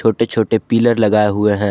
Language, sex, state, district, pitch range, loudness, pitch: Hindi, male, Jharkhand, Garhwa, 105-115 Hz, -15 LUFS, 110 Hz